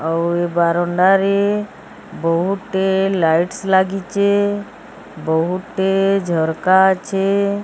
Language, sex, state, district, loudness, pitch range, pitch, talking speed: Odia, female, Odisha, Sambalpur, -17 LUFS, 170-200 Hz, 190 Hz, 70 wpm